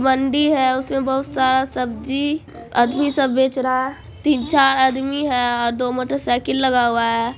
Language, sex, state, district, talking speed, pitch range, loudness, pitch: Maithili, female, Bihar, Supaul, 180 wpm, 250-275 Hz, -19 LUFS, 265 Hz